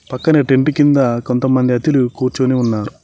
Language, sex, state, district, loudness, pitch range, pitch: Telugu, male, Telangana, Mahabubabad, -15 LUFS, 125-140 Hz, 130 Hz